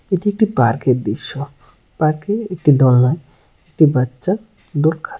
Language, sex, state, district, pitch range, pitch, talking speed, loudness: Bengali, male, West Bengal, Cooch Behar, 125-185 Hz, 145 Hz, 160 wpm, -17 LUFS